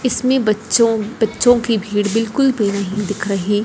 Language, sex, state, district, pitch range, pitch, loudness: Hindi, male, Punjab, Fazilka, 205-240 Hz, 220 Hz, -17 LUFS